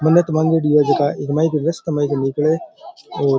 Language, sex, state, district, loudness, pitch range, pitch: Rajasthani, male, Rajasthan, Churu, -18 LUFS, 145-165 Hz, 155 Hz